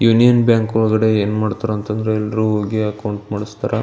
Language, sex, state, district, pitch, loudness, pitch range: Kannada, male, Karnataka, Belgaum, 110 Hz, -17 LUFS, 105-110 Hz